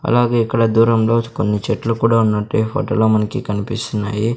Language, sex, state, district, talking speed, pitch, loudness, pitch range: Telugu, male, Andhra Pradesh, Sri Satya Sai, 165 wpm, 115 Hz, -17 LUFS, 110-115 Hz